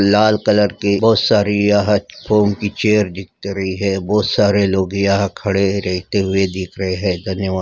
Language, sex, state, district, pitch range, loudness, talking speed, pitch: Hindi, male, Andhra Pradesh, Visakhapatnam, 95-105 Hz, -16 LUFS, 160 wpm, 100 Hz